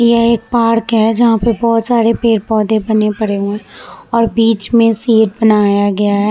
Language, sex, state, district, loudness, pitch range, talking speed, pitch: Hindi, female, Bihar, Vaishali, -12 LUFS, 215-230 Hz, 180 wpm, 225 Hz